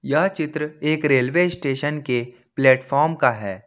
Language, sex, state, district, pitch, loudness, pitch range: Hindi, male, Jharkhand, Ranchi, 140 Hz, -20 LUFS, 125-155 Hz